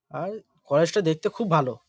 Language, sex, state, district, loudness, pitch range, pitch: Bengali, male, West Bengal, Malda, -25 LUFS, 160-215 Hz, 195 Hz